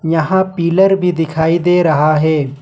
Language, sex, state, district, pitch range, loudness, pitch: Hindi, male, Jharkhand, Ranchi, 160-180 Hz, -13 LUFS, 165 Hz